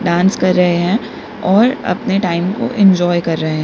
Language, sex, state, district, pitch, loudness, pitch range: Hindi, female, Uttar Pradesh, Lalitpur, 185 Hz, -14 LUFS, 175-205 Hz